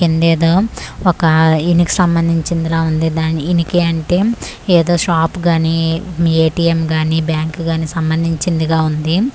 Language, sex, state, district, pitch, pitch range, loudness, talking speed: Telugu, female, Andhra Pradesh, Manyam, 165 Hz, 160-175 Hz, -14 LUFS, 110 wpm